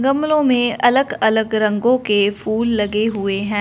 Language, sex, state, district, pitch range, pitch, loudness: Hindi, female, Punjab, Fazilka, 210-250 Hz, 220 Hz, -17 LUFS